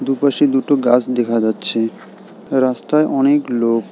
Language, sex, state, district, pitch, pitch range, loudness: Bengali, male, West Bengal, Alipurduar, 130 Hz, 115-140 Hz, -16 LUFS